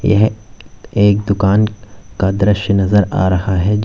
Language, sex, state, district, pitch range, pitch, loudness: Hindi, male, Uttar Pradesh, Lalitpur, 95-105 Hz, 100 Hz, -14 LUFS